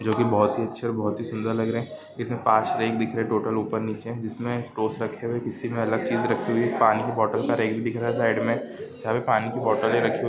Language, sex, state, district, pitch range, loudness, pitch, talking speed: Hindi, male, Andhra Pradesh, Guntur, 110-120 Hz, -25 LUFS, 115 Hz, 275 wpm